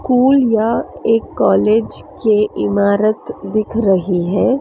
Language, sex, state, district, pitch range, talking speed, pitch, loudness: Hindi, female, Maharashtra, Mumbai Suburban, 200-230 Hz, 115 wpm, 215 Hz, -15 LUFS